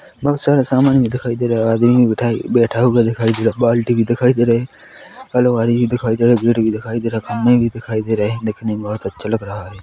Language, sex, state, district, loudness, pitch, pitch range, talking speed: Hindi, male, Chhattisgarh, Korba, -16 LUFS, 115 Hz, 110-120 Hz, 285 wpm